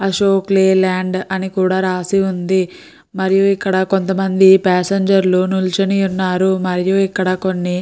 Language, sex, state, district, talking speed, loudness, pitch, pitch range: Telugu, female, Andhra Pradesh, Guntur, 140 wpm, -15 LUFS, 190 Hz, 185-195 Hz